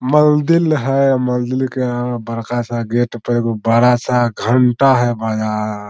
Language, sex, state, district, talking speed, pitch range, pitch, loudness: Hindi, male, Bihar, Muzaffarpur, 160 wpm, 115-130 Hz, 120 Hz, -16 LUFS